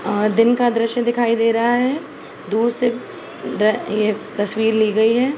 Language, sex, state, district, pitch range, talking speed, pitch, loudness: Hindi, female, Uttar Pradesh, Jalaun, 215-240 Hz, 180 wpm, 230 Hz, -18 LUFS